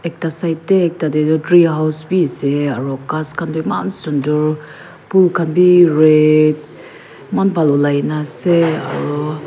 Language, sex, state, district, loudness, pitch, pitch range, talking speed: Nagamese, female, Nagaland, Kohima, -15 LUFS, 155 Hz, 150-170 Hz, 145 wpm